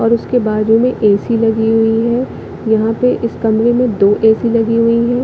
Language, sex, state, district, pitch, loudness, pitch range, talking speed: Hindi, female, Chhattisgarh, Bilaspur, 225 Hz, -13 LUFS, 220-235 Hz, 205 wpm